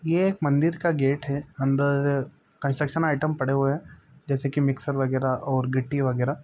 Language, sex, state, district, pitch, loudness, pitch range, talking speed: Maithili, male, Bihar, Supaul, 140 Hz, -25 LUFS, 135-150 Hz, 170 wpm